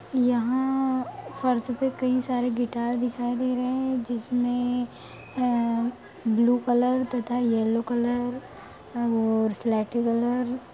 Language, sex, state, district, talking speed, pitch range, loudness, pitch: Hindi, female, Bihar, Jamui, 115 wpm, 235-250 Hz, -26 LUFS, 245 Hz